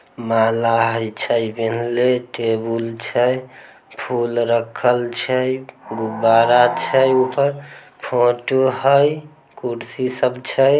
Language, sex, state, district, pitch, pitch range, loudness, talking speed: Maithili, male, Bihar, Samastipur, 120 Hz, 115-130 Hz, -18 LUFS, 100 wpm